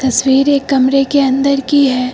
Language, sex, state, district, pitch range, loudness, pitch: Hindi, female, Uttar Pradesh, Lucknow, 265-280 Hz, -12 LUFS, 275 Hz